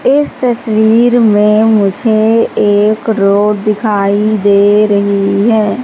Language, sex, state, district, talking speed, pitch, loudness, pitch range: Hindi, female, Madhya Pradesh, Katni, 105 wpm, 215 Hz, -10 LUFS, 205-225 Hz